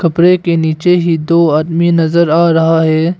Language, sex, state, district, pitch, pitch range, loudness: Hindi, male, Arunachal Pradesh, Longding, 170 Hz, 160-170 Hz, -11 LUFS